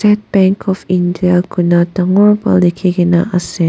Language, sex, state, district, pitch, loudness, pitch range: Nagamese, female, Nagaland, Dimapur, 180 Hz, -12 LUFS, 175-195 Hz